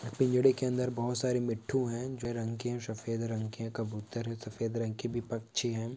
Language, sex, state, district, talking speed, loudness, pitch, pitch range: Hindi, male, Uttar Pradesh, Varanasi, 240 wpm, -34 LUFS, 115 Hz, 115-125 Hz